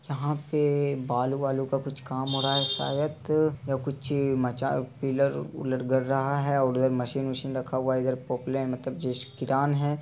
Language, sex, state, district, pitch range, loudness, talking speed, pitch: Hindi, male, Bihar, Araria, 130-140 Hz, -28 LUFS, 200 wpm, 135 Hz